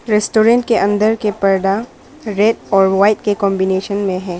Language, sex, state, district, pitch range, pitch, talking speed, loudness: Hindi, female, Arunachal Pradesh, Papum Pare, 195-220 Hz, 205 Hz, 165 wpm, -15 LUFS